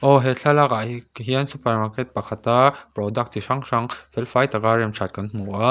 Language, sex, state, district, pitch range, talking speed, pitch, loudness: Mizo, male, Mizoram, Aizawl, 110-130 Hz, 200 wpm, 120 Hz, -22 LUFS